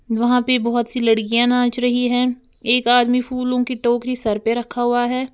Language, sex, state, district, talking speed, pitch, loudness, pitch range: Hindi, female, Uttar Pradesh, Lalitpur, 200 wpm, 245 Hz, -18 LUFS, 240-250 Hz